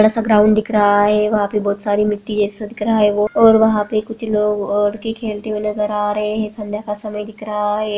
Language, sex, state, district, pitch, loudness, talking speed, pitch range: Hindi, female, Rajasthan, Nagaur, 210 Hz, -17 LUFS, 220 wpm, 210-215 Hz